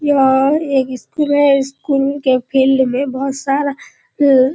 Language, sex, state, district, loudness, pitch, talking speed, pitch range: Hindi, female, Bihar, Kishanganj, -15 LUFS, 275 Hz, 145 wpm, 265-285 Hz